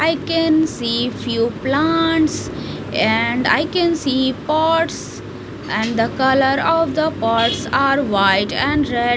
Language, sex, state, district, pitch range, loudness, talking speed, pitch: English, female, Punjab, Fazilka, 235-320 Hz, -17 LUFS, 135 wpm, 275 Hz